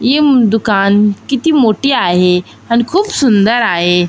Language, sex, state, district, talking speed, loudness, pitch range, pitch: Marathi, female, Maharashtra, Aurangabad, 130 wpm, -11 LUFS, 195-265 Hz, 225 Hz